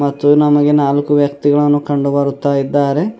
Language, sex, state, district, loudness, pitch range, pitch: Kannada, male, Karnataka, Bidar, -13 LUFS, 140-145 Hz, 145 Hz